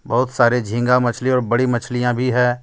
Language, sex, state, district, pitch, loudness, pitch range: Hindi, male, Jharkhand, Deoghar, 125 Hz, -18 LUFS, 120-125 Hz